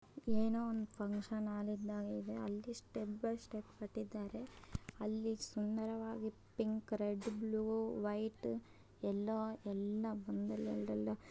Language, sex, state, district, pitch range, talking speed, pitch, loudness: Kannada, male, Karnataka, Bellary, 205-220 Hz, 75 wpm, 215 Hz, -42 LUFS